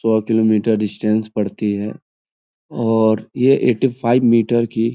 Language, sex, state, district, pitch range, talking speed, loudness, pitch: Hindi, male, Uttar Pradesh, Etah, 110-120 Hz, 160 wpm, -17 LUFS, 110 Hz